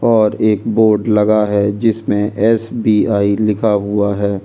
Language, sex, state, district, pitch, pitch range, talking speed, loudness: Hindi, male, Delhi, New Delhi, 105 Hz, 105-110 Hz, 150 wpm, -14 LUFS